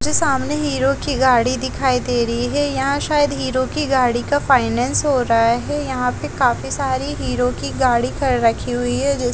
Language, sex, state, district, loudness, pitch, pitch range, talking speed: Hindi, female, Haryana, Charkhi Dadri, -18 LUFS, 260 Hz, 245-275 Hz, 195 wpm